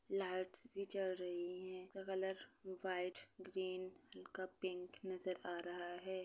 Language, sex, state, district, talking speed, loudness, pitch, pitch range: Hindi, female, Chhattisgarh, Bastar, 145 wpm, -46 LUFS, 185 Hz, 180-190 Hz